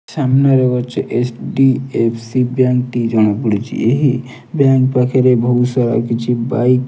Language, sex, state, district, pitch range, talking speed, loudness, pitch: Odia, male, Odisha, Nuapada, 120-130 Hz, 140 wpm, -15 LUFS, 125 Hz